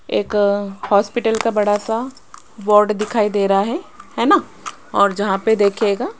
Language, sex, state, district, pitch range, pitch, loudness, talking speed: Hindi, female, Rajasthan, Jaipur, 200-225 Hz, 210 Hz, -17 LUFS, 165 wpm